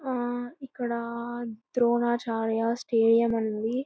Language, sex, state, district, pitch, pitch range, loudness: Telugu, female, Andhra Pradesh, Anantapur, 235 Hz, 230-245 Hz, -27 LUFS